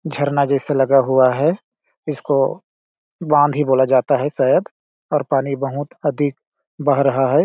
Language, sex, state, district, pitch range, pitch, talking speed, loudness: Hindi, male, Chhattisgarh, Balrampur, 135-145 Hz, 140 Hz, 155 wpm, -18 LUFS